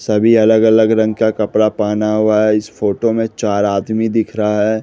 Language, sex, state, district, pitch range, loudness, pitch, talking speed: Hindi, male, Bihar, West Champaran, 105-110 Hz, -14 LUFS, 110 Hz, 210 wpm